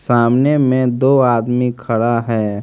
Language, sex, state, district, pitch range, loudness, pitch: Hindi, male, Haryana, Rohtak, 115-130 Hz, -15 LUFS, 120 Hz